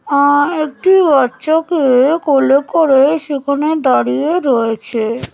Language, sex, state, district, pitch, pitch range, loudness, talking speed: Bengali, female, West Bengal, Jhargram, 285 Hz, 260-315 Hz, -13 LUFS, 110 wpm